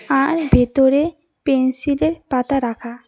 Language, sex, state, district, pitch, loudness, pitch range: Bengali, female, West Bengal, Cooch Behar, 270 Hz, -18 LUFS, 255-305 Hz